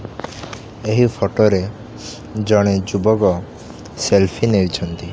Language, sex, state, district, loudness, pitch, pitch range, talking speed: Odia, male, Odisha, Khordha, -17 LUFS, 105 Hz, 95-110 Hz, 80 wpm